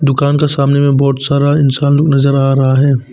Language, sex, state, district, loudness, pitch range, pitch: Hindi, male, Arunachal Pradesh, Papum Pare, -11 LUFS, 135-145 Hz, 140 Hz